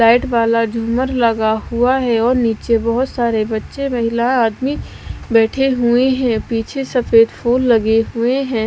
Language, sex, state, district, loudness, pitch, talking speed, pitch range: Hindi, female, Bihar, West Champaran, -16 LUFS, 235 Hz, 150 wpm, 225-255 Hz